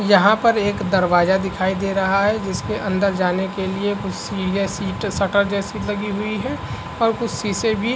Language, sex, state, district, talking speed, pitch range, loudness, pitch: Hindi, male, Uttar Pradesh, Varanasi, 180 wpm, 195-210 Hz, -20 LUFS, 200 Hz